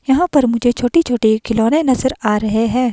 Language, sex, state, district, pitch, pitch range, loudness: Hindi, female, Himachal Pradesh, Shimla, 245 Hz, 225-265 Hz, -15 LUFS